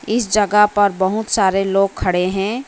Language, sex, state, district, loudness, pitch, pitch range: Hindi, female, West Bengal, Alipurduar, -16 LUFS, 200 Hz, 190-210 Hz